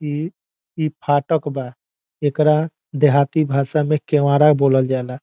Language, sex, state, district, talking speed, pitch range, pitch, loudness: Bhojpuri, male, Bihar, Saran, 125 wpm, 140-155 Hz, 150 Hz, -18 LUFS